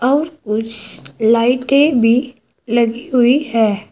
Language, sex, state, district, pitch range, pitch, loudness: Hindi, female, Uttar Pradesh, Saharanpur, 225-265 Hz, 240 Hz, -15 LUFS